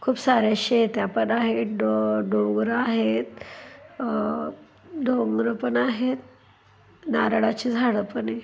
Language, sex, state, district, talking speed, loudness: Marathi, female, Maharashtra, Dhule, 115 wpm, -24 LUFS